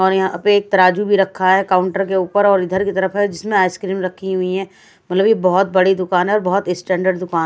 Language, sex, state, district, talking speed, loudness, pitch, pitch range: Hindi, female, Odisha, Nuapada, 250 wpm, -16 LUFS, 190 Hz, 185-195 Hz